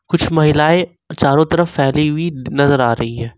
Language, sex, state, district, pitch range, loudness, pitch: Hindi, male, Jharkhand, Ranchi, 135-165 Hz, -15 LUFS, 150 Hz